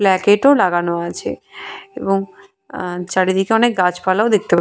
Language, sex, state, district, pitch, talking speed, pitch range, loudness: Bengali, female, West Bengal, Purulia, 190 Hz, 155 wpm, 180-220 Hz, -17 LUFS